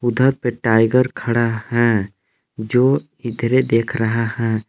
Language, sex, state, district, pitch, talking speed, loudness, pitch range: Hindi, male, Jharkhand, Palamu, 115 Hz, 130 wpm, -18 LUFS, 115-125 Hz